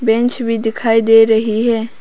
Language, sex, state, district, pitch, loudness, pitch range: Hindi, female, Arunachal Pradesh, Papum Pare, 225 Hz, -13 LUFS, 225-230 Hz